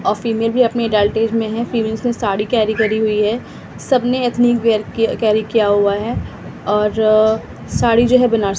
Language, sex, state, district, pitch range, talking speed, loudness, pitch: Hindi, female, Delhi, New Delhi, 215-235 Hz, 195 wpm, -16 LUFS, 220 Hz